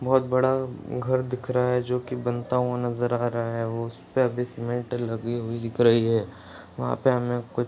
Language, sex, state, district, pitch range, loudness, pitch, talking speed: Hindi, male, Bihar, Bhagalpur, 115-125 Hz, -26 LUFS, 120 Hz, 220 wpm